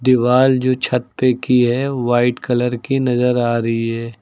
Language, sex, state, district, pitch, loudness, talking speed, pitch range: Hindi, male, Uttar Pradesh, Lucknow, 125 Hz, -17 LUFS, 185 wpm, 120-130 Hz